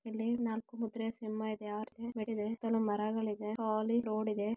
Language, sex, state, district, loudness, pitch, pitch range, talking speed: Kannada, female, Karnataka, Shimoga, -36 LUFS, 220 Hz, 215-225 Hz, 90 wpm